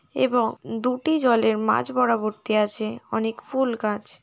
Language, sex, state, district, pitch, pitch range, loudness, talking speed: Bengali, female, West Bengal, Paschim Medinipur, 230 Hz, 215-250 Hz, -23 LUFS, 130 wpm